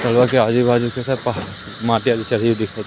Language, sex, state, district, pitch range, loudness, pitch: Hindi, male, Madhya Pradesh, Umaria, 110-125 Hz, -18 LUFS, 115 Hz